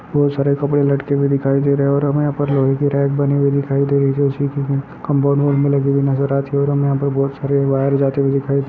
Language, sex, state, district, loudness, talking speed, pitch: Hindi, male, Bihar, Purnia, -17 LUFS, 215 wpm, 140 Hz